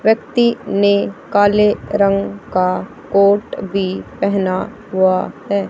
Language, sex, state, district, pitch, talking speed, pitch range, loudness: Hindi, female, Haryana, Charkhi Dadri, 200 Hz, 105 wpm, 185-205 Hz, -16 LUFS